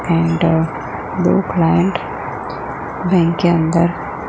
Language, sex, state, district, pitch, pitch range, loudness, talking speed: Hindi, female, Gujarat, Gandhinagar, 165 Hz, 160-170 Hz, -17 LUFS, 85 wpm